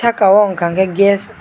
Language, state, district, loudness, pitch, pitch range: Kokborok, Tripura, West Tripura, -13 LUFS, 200 Hz, 190-210 Hz